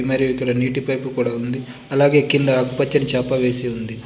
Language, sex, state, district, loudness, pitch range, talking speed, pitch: Telugu, male, Telangana, Adilabad, -16 LUFS, 125-135 Hz, 180 wpm, 130 Hz